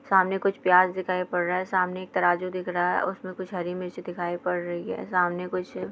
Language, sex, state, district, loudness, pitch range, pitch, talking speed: Hindi, female, Bihar, Sitamarhi, -26 LUFS, 180-185 Hz, 180 Hz, 225 wpm